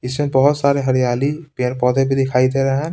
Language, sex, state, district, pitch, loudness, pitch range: Hindi, male, Bihar, Patna, 135 Hz, -17 LUFS, 125-140 Hz